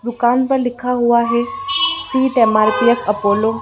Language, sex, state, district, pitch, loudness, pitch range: Hindi, female, Madhya Pradesh, Dhar, 240 Hz, -16 LUFS, 225-260 Hz